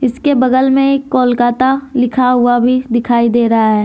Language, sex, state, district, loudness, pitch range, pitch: Hindi, female, Jharkhand, Deoghar, -12 LUFS, 240-260 Hz, 250 Hz